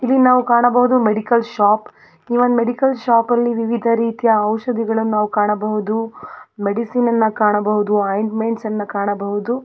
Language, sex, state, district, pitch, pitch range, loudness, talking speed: Kannada, female, Karnataka, Belgaum, 225 Hz, 210-240 Hz, -17 LUFS, 120 wpm